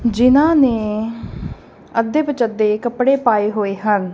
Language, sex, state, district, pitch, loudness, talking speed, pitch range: Punjabi, female, Punjab, Kapurthala, 230 Hz, -16 LUFS, 115 wpm, 210-260 Hz